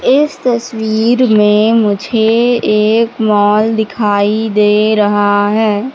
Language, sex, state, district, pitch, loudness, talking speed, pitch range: Hindi, female, Madhya Pradesh, Katni, 220 Hz, -11 LUFS, 100 wpm, 210-230 Hz